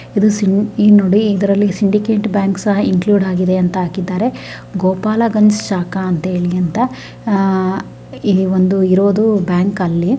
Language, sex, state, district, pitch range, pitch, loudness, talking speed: Kannada, female, Karnataka, Dharwad, 185-210 Hz, 195 Hz, -14 LUFS, 125 wpm